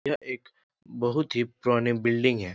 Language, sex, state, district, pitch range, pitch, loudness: Hindi, male, Bihar, Jahanabad, 120-125 Hz, 120 Hz, -27 LUFS